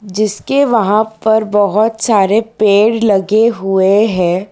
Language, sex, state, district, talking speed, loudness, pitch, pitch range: Hindi, female, Gujarat, Valsad, 120 wpm, -12 LUFS, 215 Hz, 200-220 Hz